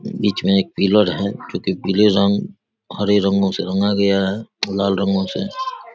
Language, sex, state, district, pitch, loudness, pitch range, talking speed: Hindi, male, Bihar, Saharsa, 100 Hz, -18 LUFS, 95-105 Hz, 170 wpm